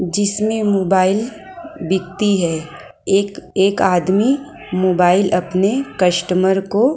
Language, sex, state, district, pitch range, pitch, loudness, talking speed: Hindi, female, Himachal Pradesh, Shimla, 185-210 Hz, 195 Hz, -17 LUFS, 95 wpm